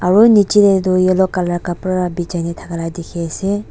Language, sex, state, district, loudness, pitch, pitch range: Nagamese, female, Nagaland, Dimapur, -15 LUFS, 180 Hz, 170-190 Hz